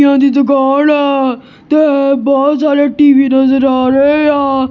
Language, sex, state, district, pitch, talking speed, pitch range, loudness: Punjabi, female, Punjab, Kapurthala, 275 Hz, 180 wpm, 270-285 Hz, -10 LUFS